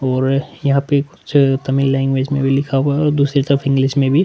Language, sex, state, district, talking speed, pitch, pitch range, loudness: Hindi, male, Chhattisgarh, Korba, 255 wpm, 140 Hz, 135-140 Hz, -16 LUFS